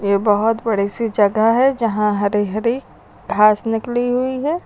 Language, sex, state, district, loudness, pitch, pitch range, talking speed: Hindi, female, Uttar Pradesh, Lucknow, -17 LUFS, 225 Hz, 210-240 Hz, 165 wpm